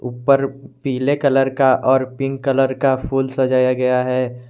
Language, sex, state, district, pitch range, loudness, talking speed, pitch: Hindi, male, Jharkhand, Garhwa, 130-135 Hz, -18 LUFS, 160 wpm, 130 Hz